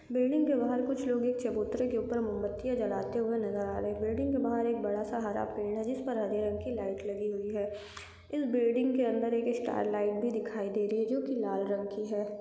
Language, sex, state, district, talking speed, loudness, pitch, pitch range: Hindi, female, Chhattisgarh, Kabirdham, 245 wpm, -32 LUFS, 225 Hz, 210-245 Hz